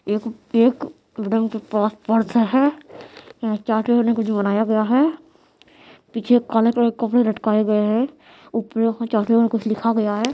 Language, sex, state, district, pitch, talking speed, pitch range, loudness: Hindi, female, Bihar, Madhepura, 230 Hz, 145 wpm, 220-245 Hz, -20 LUFS